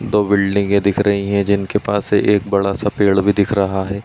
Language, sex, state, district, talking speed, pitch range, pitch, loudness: Hindi, male, Uttar Pradesh, Ghazipur, 235 wpm, 100-105 Hz, 100 Hz, -16 LUFS